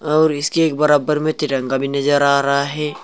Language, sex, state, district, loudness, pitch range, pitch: Hindi, male, Uttar Pradesh, Saharanpur, -17 LUFS, 140-150 Hz, 150 Hz